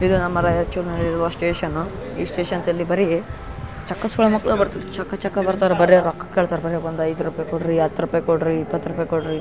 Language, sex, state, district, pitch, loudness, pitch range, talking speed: Kannada, male, Karnataka, Raichur, 170 Hz, -21 LUFS, 165-185 Hz, 200 wpm